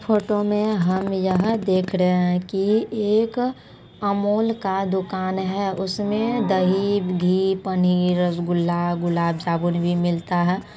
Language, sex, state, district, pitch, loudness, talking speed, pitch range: Maithili, female, Bihar, Supaul, 190 Hz, -22 LUFS, 120 wpm, 180-205 Hz